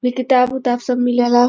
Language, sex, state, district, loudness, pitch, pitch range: Bhojpuri, female, Uttar Pradesh, Varanasi, -16 LUFS, 250 Hz, 245-255 Hz